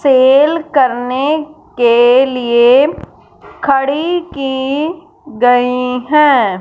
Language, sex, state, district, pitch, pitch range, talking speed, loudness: Hindi, female, Punjab, Fazilka, 270 Hz, 250-300 Hz, 75 wpm, -12 LUFS